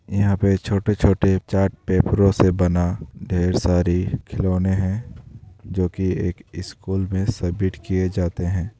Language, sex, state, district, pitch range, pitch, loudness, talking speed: Hindi, male, Bihar, Darbhanga, 90-100 Hz, 95 Hz, -21 LUFS, 135 wpm